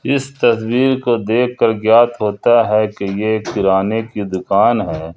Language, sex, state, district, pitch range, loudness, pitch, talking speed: Hindi, male, Jharkhand, Ranchi, 105-120 Hz, -15 LUFS, 110 Hz, 160 wpm